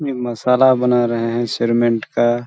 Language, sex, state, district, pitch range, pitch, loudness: Hindi, male, Chhattisgarh, Balrampur, 120-125 Hz, 120 Hz, -17 LUFS